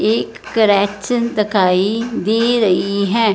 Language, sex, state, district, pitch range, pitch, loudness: Hindi, female, Punjab, Fazilka, 200-230 Hz, 215 Hz, -16 LUFS